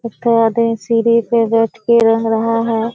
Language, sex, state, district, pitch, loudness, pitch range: Hindi, female, Bihar, Kishanganj, 230 Hz, -14 LUFS, 225-230 Hz